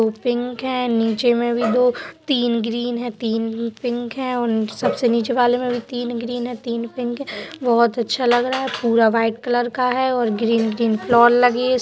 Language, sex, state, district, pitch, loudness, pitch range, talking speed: Hindi, female, Uttar Pradesh, Budaun, 240 Hz, -20 LUFS, 230-245 Hz, 225 wpm